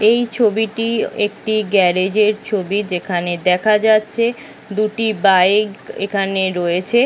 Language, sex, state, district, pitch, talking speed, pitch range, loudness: Bengali, female, West Bengal, Kolkata, 210 Hz, 100 wpm, 190-220 Hz, -17 LUFS